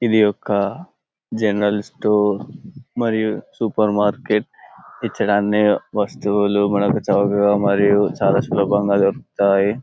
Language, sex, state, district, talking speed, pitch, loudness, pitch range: Telugu, male, Telangana, Karimnagar, 100 wpm, 105 Hz, -18 LUFS, 100-105 Hz